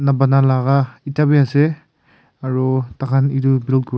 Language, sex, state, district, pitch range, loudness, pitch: Nagamese, male, Nagaland, Kohima, 130-140 Hz, -17 LUFS, 135 Hz